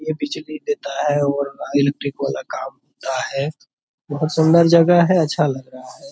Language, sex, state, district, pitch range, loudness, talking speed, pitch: Hindi, male, Bihar, Purnia, 140-160 Hz, -19 LUFS, 175 wpm, 145 Hz